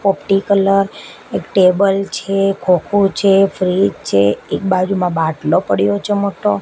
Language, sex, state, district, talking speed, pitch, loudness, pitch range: Gujarati, female, Gujarat, Gandhinagar, 135 wpm, 195 Hz, -15 LUFS, 180-195 Hz